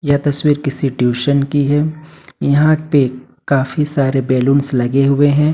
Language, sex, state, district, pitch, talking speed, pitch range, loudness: Hindi, male, Jharkhand, Ranchi, 140 Hz, 150 wpm, 135-150 Hz, -15 LUFS